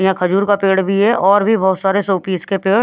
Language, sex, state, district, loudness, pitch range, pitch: Hindi, female, Haryana, Jhajjar, -15 LUFS, 190-200 Hz, 195 Hz